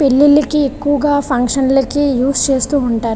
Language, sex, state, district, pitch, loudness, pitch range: Telugu, female, Andhra Pradesh, Visakhapatnam, 275 Hz, -14 LUFS, 260-290 Hz